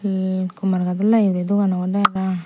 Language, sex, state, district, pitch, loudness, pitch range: Chakma, female, Tripura, Unakoti, 190 Hz, -19 LUFS, 185-200 Hz